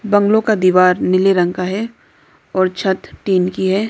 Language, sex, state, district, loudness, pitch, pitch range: Hindi, female, Arunachal Pradesh, Lower Dibang Valley, -15 LUFS, 190 Hz, 185-205 Hz